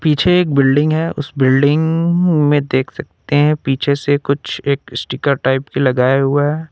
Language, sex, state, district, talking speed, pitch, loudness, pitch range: Hindi, male, Jharkhand, Ranchi, 180 wpm, 145 Hz, -15 LUFS, 135-155 Hz